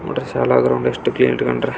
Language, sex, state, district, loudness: Kannada, male, Karnataka, Belgaum, -17 LUFS